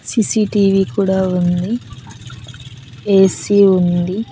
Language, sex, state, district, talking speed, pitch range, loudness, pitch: Telugu, female, Andhra Pradesh, Annamaya, 70 wpm, 130-200 Hz, -15 LUFS, 190 Hz